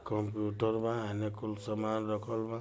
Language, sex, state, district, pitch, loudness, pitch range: Bhojpuri, male, Bihar, Gopalganj, 110 Hz, -35 LUFS, 105-110 Hz